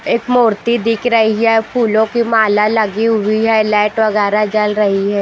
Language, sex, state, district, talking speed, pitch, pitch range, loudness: Hindi, female, Haryana, Jhajjar, 195 wpm, 220 Hz, 210-230 Hz, -13 LUFS